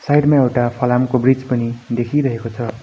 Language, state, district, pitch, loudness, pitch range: Nepali, West Bengal, Darjeeling, 125 Hz, -17 LUFS, 120-135 Hz